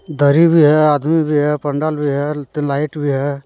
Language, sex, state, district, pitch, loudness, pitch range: Hindi, male, Jharkhand, Deoghar, 150 Hz, -15 LUFS, 145-155 Hz